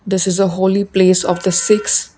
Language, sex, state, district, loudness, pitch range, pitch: English, female, Assam, Kamrup Metropolitan, -14 LUFS, 185-195 Hz, 190 Hz